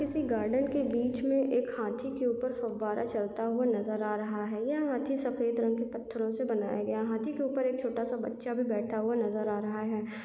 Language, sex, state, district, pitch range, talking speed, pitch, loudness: Hindi, female, Chhattisgarh, Raigarh, 215-255 Hz, 220 wpm, 235 Hz, -32 LUFS